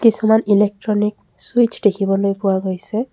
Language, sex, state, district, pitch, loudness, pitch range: Assamese, female, Assam, Kamrup Metropolitan, 210 Hz, -17 LUFS, 195-220 Hz